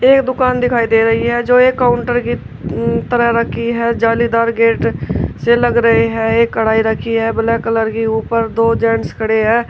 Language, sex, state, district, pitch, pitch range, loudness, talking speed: Hindi, female, Uttar Pradesh, Shamli, 230 Hz, 225-240 Hz, -14 LUFS, 200 wpm